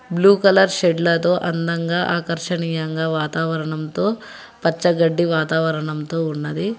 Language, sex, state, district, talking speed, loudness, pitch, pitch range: Telugu, female, Telangana, Hyderabad, 80 wpm, -19 LUFS, 165 Hz, 160-180 Hz